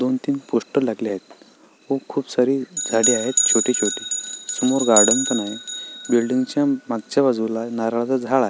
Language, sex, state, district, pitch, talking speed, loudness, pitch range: Marathi, male, Maharashtra, Sindhudurg, 130 Hz, 160 wpm, -20 LUFS, 115-140 Hz